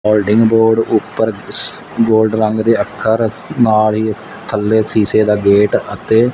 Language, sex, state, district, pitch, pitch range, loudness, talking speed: Punjabi, male, Punjab, Fazilka, 110 Hz, 105-110 Hz, -14 LUFS, 130 wpm